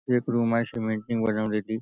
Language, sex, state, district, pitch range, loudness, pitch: Marathi, male, Maharashtra, Nagpur, 110-115 Hz, -26 LUFS, 115 Hz